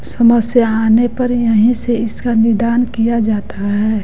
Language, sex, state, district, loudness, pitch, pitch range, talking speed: Hindi, female, Bihar, West Champaran, -14 LUFS, 230 Hz, 220-240 Hz, 150 wpm